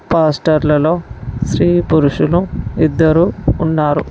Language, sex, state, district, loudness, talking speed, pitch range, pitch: Telugu, female, Telangana, Mahabubabad, -14 LUFS, 75 wpm, 150-165 Hz, 155 Hz